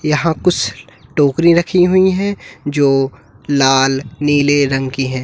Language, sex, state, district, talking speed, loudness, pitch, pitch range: Hindi, male, Uttar Pradesh, Lalitpur, 140 wpm, -14 LUFS, 145 Hz, 135-165 Hz